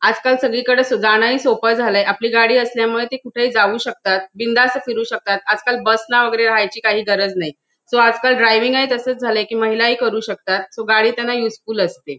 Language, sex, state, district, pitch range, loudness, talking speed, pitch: Marathi, female, Goa, North and South Goa, 215-240 Hz, -16 LUFS, 185 wpm, 230 Hz